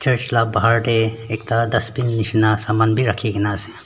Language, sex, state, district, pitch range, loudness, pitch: Nagamese, male, Nagaland, Dimapur, 110-115 Hz, -18 LUFS, 115 Hz